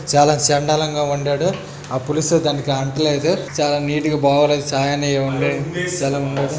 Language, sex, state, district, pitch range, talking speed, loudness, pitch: Telugu, male, Andhra Pradesh, Chittoor, 140-155 Hz, 125 wpm, -18 LUFS, 145 Hz